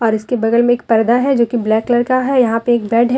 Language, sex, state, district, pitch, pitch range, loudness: Hindi, female, Jharkhand, Deoghar, 240 Hz, 230-245 Hz, -14 LUFS